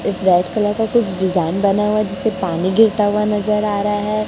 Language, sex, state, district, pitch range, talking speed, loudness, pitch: Hindi, female, Chhattisgarh, Raipur, 190-215 Hz, 225 wpm, -17 LUFS, 205 Hz